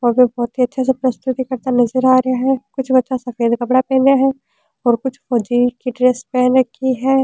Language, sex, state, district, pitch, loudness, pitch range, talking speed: Rajasthani, female, Rajasthan, Churu, 255 Hz, -16 LUFS, 245-260 Hz, 190 wpm